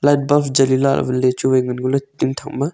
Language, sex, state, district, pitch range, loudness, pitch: Wancho, male, Arunachal Pradesh, Longding, 130-140 Hz, -17 LUFS, 135 Hz